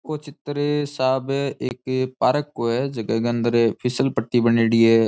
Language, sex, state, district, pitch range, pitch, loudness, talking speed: Rajasthani, male, Rajasthan, Churu, 115-140 Hz, 130 Hz, -22 LUFS, 165 wpm